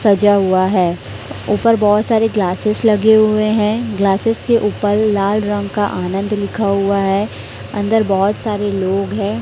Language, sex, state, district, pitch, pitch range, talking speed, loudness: Hindi, female, Chhattisgarh, Raipur, 205 Hz, 195-215 Hz, 160 wpm, -15 LUFS